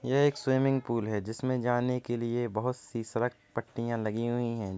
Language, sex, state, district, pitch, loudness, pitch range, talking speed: Hindi, male, Uttar Pradesh, Varanasi, 120 Hz, -31 LUFS, 115-125 Hz, 200 wpm